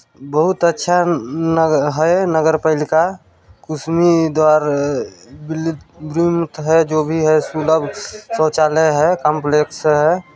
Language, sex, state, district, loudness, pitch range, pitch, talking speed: Chhattisgarhi, male, Chhattisgarh, Balrampur, -16 LUFS, 155-165 Hz, 160 Hz, 105 wpm